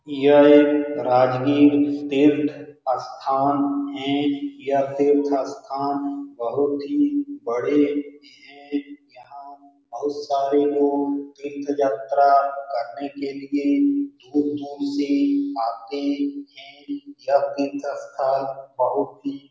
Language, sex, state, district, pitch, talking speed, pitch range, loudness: Hindi, male, Bihar, Saran, 140 Hz, 85 wpm, 140-145 Hz, -22 LUFS